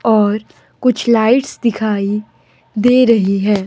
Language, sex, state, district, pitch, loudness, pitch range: Hindi, male, Himachal Pradesh, Shimla, 215 Hz, -14 LUFS, 205-235 Hz